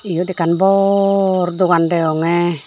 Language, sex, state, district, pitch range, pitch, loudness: Chakma, female, Tripura, Dhalai, 170-195 Hz, 175 Hz, -15 LUFS